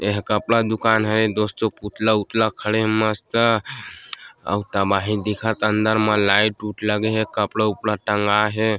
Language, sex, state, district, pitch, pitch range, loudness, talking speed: Chhattisgarhi, male, Chhattisgarh, Sarguja, 105 Hz, 105-110 Hz, -20 LUFS, 165 wpm